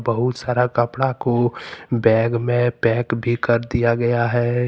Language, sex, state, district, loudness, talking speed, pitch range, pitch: Hindi, male, Jharkhand, Deoghar, -19 LUFS, 155 wpm, 120-125 Hz, 120 Hz